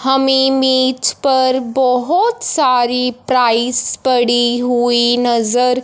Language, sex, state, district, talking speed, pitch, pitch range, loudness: Hindi, female, Punjab, Fazilka, 90 wpm, 250 Hz, 240-260 Hz, -14 LUFS